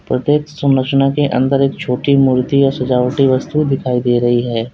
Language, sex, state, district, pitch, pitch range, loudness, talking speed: Hindi, male, Uttar Pradesh, Lalitpur, 135 Hz, 125-140 Hz, -14 LUFS, 175 wpm